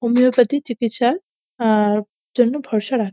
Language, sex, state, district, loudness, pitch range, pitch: Bengali, female, West Bengal, North 24 Parganas, -19 LUFS, 215-255 Hz, 240 Hz